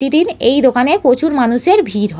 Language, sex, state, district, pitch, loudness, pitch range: Bengali, female, West Bengal, North 24 Parganas, 260 Hz, -13 LUFS, 245-325 Hz